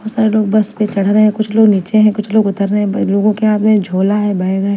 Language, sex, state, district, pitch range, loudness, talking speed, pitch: Hindi, female, Punjab, Fazilka, 200-215 Hz, -13 LUFS, 325 wpm, 210 Hz